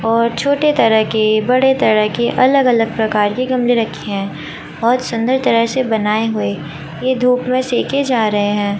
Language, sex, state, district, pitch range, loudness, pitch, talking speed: Hindi, female, Chandigarh, Chandigarh, 210-255 Hz, -15 LUFS, 230 Hz, 185 wpm